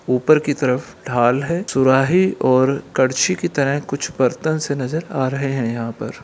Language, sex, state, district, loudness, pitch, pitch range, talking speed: Hindi, male, Bihar, Gopalganj, -18 LUFS, 135 Hz, 130-155 Hz, 180 wpm